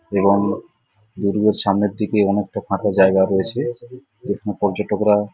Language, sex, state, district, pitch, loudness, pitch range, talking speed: Bengali, male, West Bengal, Jhargram, 105 Hz, -19 LUFS, 100-105 Hz, 110 wpm